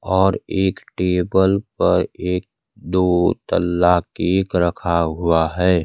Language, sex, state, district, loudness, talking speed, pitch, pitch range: Hindi, male, Bihar, Kaimur, -19 LUFS, 115 wpm, 90 Hz, 85-95 Hz